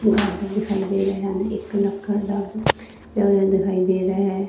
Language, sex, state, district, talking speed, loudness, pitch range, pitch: Punjabi, female, Punjab, Fazilka, 185 wpm, -22 LUFS, 195-205 Hz, 200 Hz